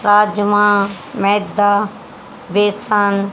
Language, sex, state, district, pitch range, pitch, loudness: Hindi, female, Haryana, Charkhi Dadri, 200-210 Hz, 205 Hz, -15 LUFS